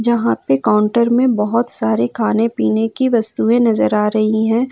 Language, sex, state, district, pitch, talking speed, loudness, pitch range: Hindi, female, Jharkhand, Ranchi, 225 Hz, 180 wpm, -15 LUFS, 210-235 Hz